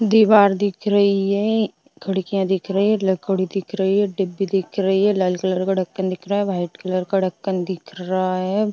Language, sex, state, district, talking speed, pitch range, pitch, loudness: Hindi, female, Uttar Pradesh, Budaun, 205 wpm, 185-200 Hz, 195 Hz, -20 LUFS